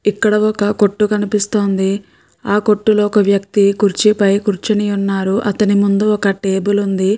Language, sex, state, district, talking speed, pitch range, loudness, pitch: Telugu, female, Andhra Pradesh, Guntur, 135 wpm, 200-210 Hz, -15 LUFS, 205 Hz